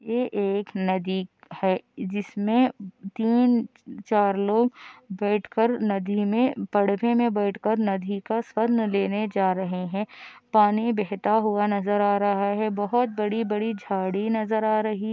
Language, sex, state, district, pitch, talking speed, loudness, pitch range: Hindi, female, Andhra Pradesh, Anantapur, 210 Hz, 145 wpm, -24 LUFS, 200-225 Hz